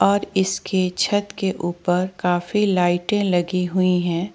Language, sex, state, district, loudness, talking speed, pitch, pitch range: Hindi, female, Jharkhand, Ranchi, -21 LUFS, 125 wpm, 185 Hz, 180-195 Hz